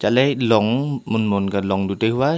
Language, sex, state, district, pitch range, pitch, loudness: Wancho, male, Arunachal Pradesh, Longding, 100-130 Hz, 110 Hz, -19 LUFS